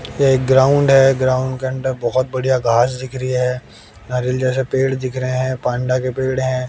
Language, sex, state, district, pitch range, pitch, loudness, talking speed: Hindi, male, Haryana, Jhajjar, 125-130 Hz, 130 Hz, -17 LUFS, 195 wpm